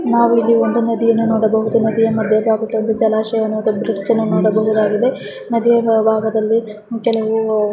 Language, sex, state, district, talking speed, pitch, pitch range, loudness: Kannada, female, Karnataka, Chamarajanagar, 125 wpm, 220 Hz, 220-230 Hz, -16 LUFS